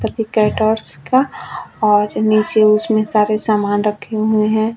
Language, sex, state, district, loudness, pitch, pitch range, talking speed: Hindi, female, Chhattisgarh, Bastar, -16 LUFS, 215 Hz, 210-220 Hz, 140 wpm